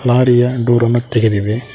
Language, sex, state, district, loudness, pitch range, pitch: Kannada, male, Karnataka, Koppal, -13 LUFS, 115-120 Hz, 120 Hz